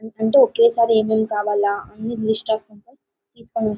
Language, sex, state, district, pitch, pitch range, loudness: Telugu, female, Karnataka, Bellary, 220 Hz, 215-230 Hz, -19 LUFS